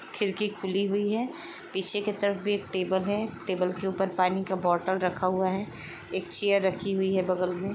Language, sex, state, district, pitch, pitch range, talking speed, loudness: Hindi, female, Uttar Pradesh, Etah, 190 Hz, 185-205 Hz, 210 wpm, -28 LUFS